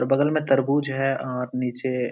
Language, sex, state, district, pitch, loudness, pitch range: Hindi, male, Uttar Pradesh, Hamirpur, 135 Hz, -24 LUFS, 125-140 Hz